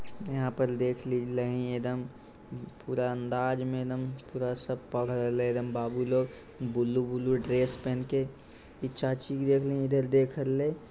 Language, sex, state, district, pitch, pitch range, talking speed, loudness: Maithili, male, Bihar, Lakhisarai, 125 Hz, 125-130 Hz, 155 wpm, -31 LUFS